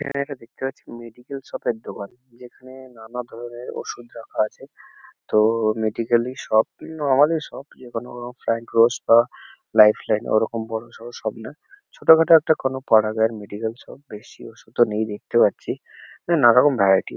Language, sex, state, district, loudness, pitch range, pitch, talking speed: Bengali, male, West Bengal, Kolkata, -21 LUFS, 110-130 Hz, 120 Hz, 170 wpm